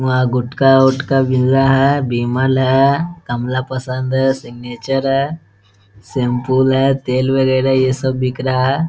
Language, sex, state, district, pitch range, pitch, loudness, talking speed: Hindi, male, Bihar, Muzaffarpur, 125-135 Hz, 130 Hz, -15 LUFS, 155 wpm